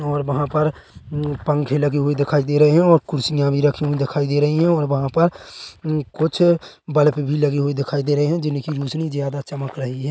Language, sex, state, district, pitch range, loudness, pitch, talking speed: Hindi, male, Chhattisgarh, Bilaspur, 140-150 Hz, -19 LUFS, 145 Hz, 230 wpm